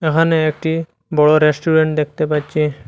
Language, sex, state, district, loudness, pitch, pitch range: Bengali, male, Assam, Hailakandi, -16 LUFS, 155 Hz, 150-160 Hz